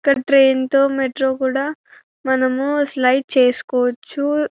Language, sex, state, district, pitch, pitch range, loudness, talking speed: Telugu, female, Telangana, Karimnagar, 270 Hz, 260-280 Hz, -17 LUFS, 105 wpm